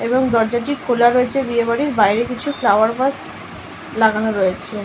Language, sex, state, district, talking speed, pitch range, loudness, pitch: Bengali, female, West Bengal, North 24 Parganas, 150 wpm, 220-255 Hz, -17 LUFS, 235 Hz